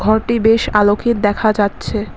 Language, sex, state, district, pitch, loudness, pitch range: Bengali, female, Assam, Kamrup Metropolitan, 215 Hz, -15 LUFS, 205-225 Hz